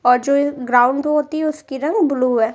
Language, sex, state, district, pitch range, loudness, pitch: Hindi, female, Bihar, Kaimur, 250-300 Hz, -17 LUFS, 280 Hz